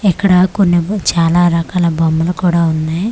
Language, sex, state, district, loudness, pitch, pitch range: Telugu, female, Andhra Pradesh, Manyam, -13 LUFS, 175 Hz, 165-185 Hz